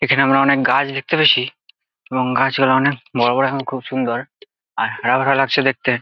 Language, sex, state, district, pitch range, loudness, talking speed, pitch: Bengali, male, West Bengal, Jalpaiguri, 130-135 Hz, -17 LUFS, 200 wpm, 135 Hz